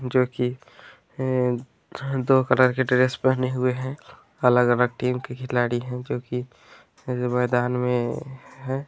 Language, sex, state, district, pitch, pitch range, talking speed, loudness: Hindi, male, Chhattisgarh, Raigarh, 125 Hz, 125-130 Hz, 135 wpm, -23 LUFS